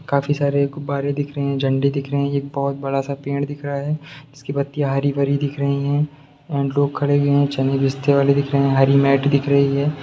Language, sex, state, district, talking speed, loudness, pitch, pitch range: Hindi, male, Bihar, Sitamarhi, 235 wpm, -20 LUFS, 140 Hz, 140-145 Hz